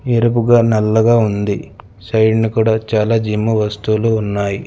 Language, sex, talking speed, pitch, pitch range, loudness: Telugu, male, 130 wpm, 110 Hz, 105-115 Hz, -15 LUFS